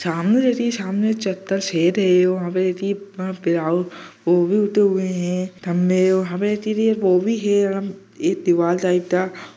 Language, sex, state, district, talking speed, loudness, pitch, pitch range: Hindi, male, Bihar, Gaya, 95 wpm, -20 LUFS, 185 Hz, 180-200 Hz